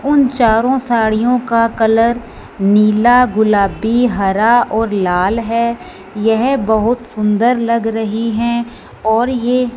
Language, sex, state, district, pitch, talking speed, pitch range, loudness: Hindi, female, Punjab, Fazilka, 230 Hz, 115 wpm, 215-240 Hz, -14 LUFS